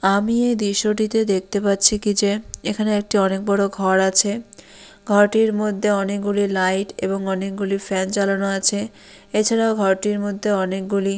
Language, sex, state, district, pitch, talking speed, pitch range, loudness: Bengali, female, West Bengal, Dakshin Dinajpur, 200 Hz, 155 wpm, 195-210 Hz, -20 LUFS